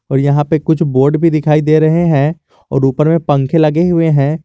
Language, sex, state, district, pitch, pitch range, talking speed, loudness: Hindi, male, Jharkhand, Garhwa, 155 Hz, 145-165 Hz, 230 wpm, -12 LUFS